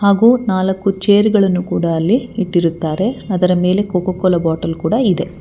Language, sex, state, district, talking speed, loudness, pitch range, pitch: Kannada, female, Karnataka, Bangalore, 155 wpm, -15 LUFS, 180-205 Hz, 190 Hz